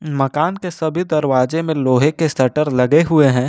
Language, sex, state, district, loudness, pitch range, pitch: Hindi, male, Jharkhand, Ranchi, -16 LUFS, 135-160 Hz, 150 Hz